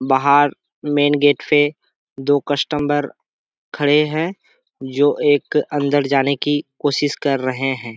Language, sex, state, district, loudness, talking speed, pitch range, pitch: Hindi, male, Bihar, Kishanganj, -18 LUFS, 130 wpm, 140-145 Hz, 145 Hz